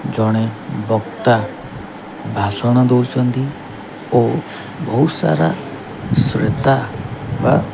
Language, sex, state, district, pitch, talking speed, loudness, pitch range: Odia, male, Odisha, Khordha, 120 Hz, 75 wpm, -17 LUFS, 110-130 Hz